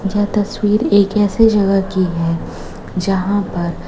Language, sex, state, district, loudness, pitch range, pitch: Hindi, female, Chhattisgarh, Raipur, -16 LUFS, 185-205 Hz, 200 Hz